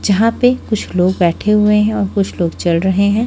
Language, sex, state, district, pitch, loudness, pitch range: Hindi, female, Haryana, Charkhi Dadri, 200 Hz, -14 LUFS, 185-215 Hz